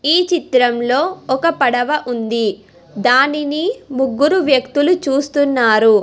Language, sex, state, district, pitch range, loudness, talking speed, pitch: Telugu, female, Telangana, Hyderabad, 245-300 Hz, -15 LUFS, 90 wpm, 270 Hz